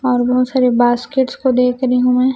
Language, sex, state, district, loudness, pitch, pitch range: Hindi, female, Chhattisgarh, Raipur, -15 LUFS, 250 Hz, 245-260 Hz